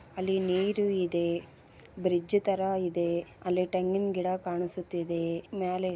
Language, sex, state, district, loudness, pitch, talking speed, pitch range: Kannada, female, Karnataka, Bellary, -30 LUFS, 180 Hz, 120 wpm, 175-190 Hz